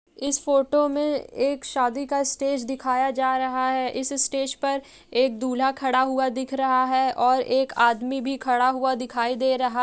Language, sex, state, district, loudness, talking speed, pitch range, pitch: Hindi, female, Uttar Pradesh, Etah, -23 LUFS, 190 wpm, 255-275 Hz, 260 Hz